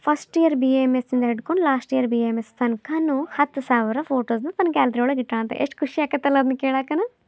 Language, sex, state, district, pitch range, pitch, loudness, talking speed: Kannada, female, Karnataka, Belgaum, 245-295 Hz, 265 Hz, -22 LUFS, 180 wpm